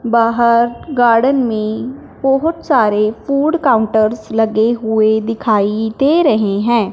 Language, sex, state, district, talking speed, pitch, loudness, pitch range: Hindi, female, Punjab, Fazilka, 115 wpm, 230 Hz, -14 LUFS, 220-270 Hz